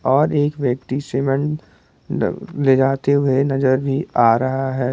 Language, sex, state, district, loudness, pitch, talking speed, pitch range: Hindi, male, Jharkhand, Garhwa, -18 LUFS, 135 Hz, 160 wpm, 130-140 Hz